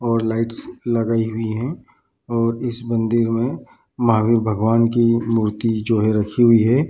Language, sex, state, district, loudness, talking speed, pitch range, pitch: Hindi, male, Bihar, Bhagalpur, -19 LUFS, 155 wpm, 110-115 Hz, 115 Hz